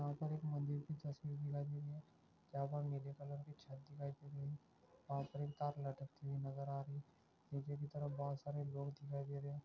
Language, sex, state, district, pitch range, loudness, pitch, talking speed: Hindi, male, Andhra Pradesh, Krishna, 140-145 Hz, -47 LUFS, 145 Hz, 255 wpm